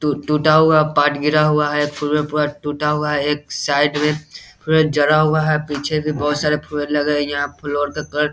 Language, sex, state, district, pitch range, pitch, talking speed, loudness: Hindi, male, Bihar, Saharsa, 145-150 Hz, 150 Hz, 215 wpm, -18 LUFS